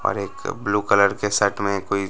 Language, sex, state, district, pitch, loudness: Hindi, male, Bihar, West Champaran, 100 Hz, -21 LUFS